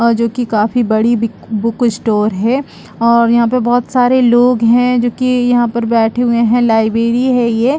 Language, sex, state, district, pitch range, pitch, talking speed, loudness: Hindi, female, Chhattisgarh, Bastar, 230-245 Hz, 235 Hz, 210 wpm, -13 LUFS